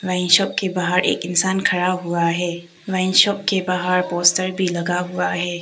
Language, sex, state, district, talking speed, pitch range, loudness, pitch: Hindi, female, Arunachal Pradesh, Papum Pare, 190 wpm, 175-185 Hz, -19 LUFS, 180 Hz